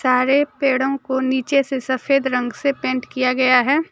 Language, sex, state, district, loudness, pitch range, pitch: Hindi, female, Jharkhand, Deoghar, -19 LUFS, 255-275 Hz, 260 Hz